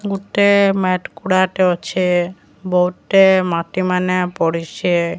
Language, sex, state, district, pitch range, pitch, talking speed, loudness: Odia, female, Odisha, Sambalpur, 175-190 Hz, 185 Hz, 80 wpm, -16 LUFS